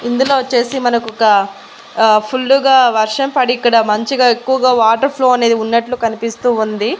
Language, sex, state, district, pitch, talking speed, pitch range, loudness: Telugu, female, Andhra Pradesh, Annamaya, 240 Hz, 145 wpm, 225-260 Hz, -13 LUFS